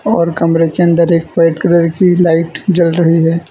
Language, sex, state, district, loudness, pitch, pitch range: Hindi, male, Gujarat, Valsad, -11 LUFS, 170 Hz, 165-175 Hz